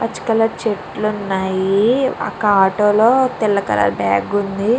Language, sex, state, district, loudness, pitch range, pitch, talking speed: Telugu, female, Andhra Pradesh, Chittoor, -16 LUFS, 190-225 Hz, 205 Hz, 140 wpm